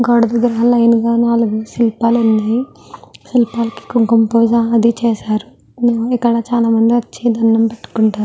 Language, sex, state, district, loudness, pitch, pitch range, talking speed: Telugu, female, Andhra Pradesh, Guntur, -14 LUFS, 230 Hz, 225-235 Hz, 130 wpm